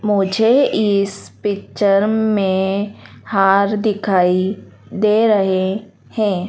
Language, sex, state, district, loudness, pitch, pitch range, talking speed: Hindi, female, Madhya Pradesh, Dhar, -16 LUFS, 200 Hz, 195-210 Hz, 85 wpm